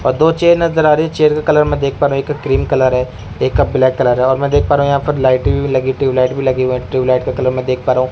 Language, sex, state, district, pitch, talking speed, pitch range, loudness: Hindi, male, Delhi, New Delhi, 135 Hz, 345 wpm, 130-145 Hz, -14 LUFS